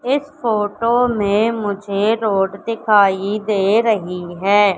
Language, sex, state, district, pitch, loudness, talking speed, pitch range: Hindi, female, Madhya Pradesh, Katni, 210 Hz, -17 LUFS, 115 wpm, 200-230 Hz